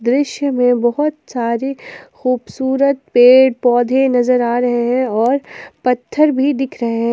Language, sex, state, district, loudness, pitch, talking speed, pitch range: Hindi, female, Jharkhand, Palamu, -15 LUFS, 250 Hz, 145 wpm, 240-270 Hz